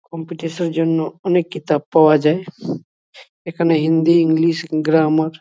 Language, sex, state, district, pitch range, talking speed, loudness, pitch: Bengali, male, West Bengal, Jhargram, 160-170 Hz, 145 wpm, -17 LUFS, 165 Hz